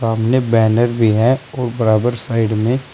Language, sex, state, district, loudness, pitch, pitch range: Hindi, male, Uttar Pradesh, Saharanpur, -16 LUFS, 115 Hz, 110-125 Hz